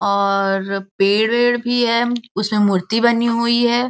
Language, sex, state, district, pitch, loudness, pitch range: Hindi, female, Uttar Pradesh, Gorakhpur, 230 Hz, -17 LUFS, 200-240 Hz